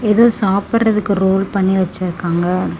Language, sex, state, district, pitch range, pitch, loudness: Tamil, female, Tamil Nadu, Namakkal, 185-210 Hz, 195 Hz, -16 LUFS